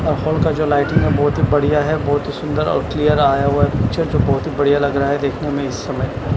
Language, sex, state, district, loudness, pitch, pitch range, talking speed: Hindi, male, Chandigarh, Chandigarh, -17 LUFS, 145 Hz, 140-150 Hz, 275 wpm